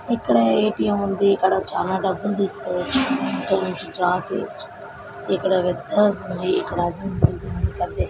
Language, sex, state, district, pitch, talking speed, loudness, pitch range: Telugu, female, Andhra Pradesh, Srikakulam, 195 Hz, 150 wpm, -21 LUFS, 185-210 Hz